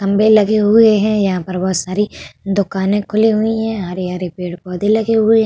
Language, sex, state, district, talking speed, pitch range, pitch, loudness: Hindi, female, Uttar Pradesh, Hamirpur, 200 wpm, 185-215 Hz, 205 Hz, -15 LUFS